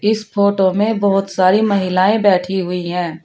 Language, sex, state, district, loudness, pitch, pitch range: Hindi, female, Uttar Pradesh, Shamli, -15 LUFS, 195 Hz, 185-205 Hz